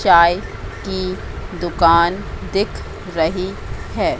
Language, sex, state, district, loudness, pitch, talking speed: Hindi, female, Madhya Pradesh, Katni, -19 LUFS, 170 Hz, 85 wpm